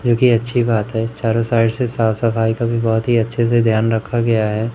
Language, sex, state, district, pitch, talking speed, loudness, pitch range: Hindi, male, Madhya Pradesh, Umaria, 115 Hz, 255 wpm, -17 LUFS, 110-120 Hz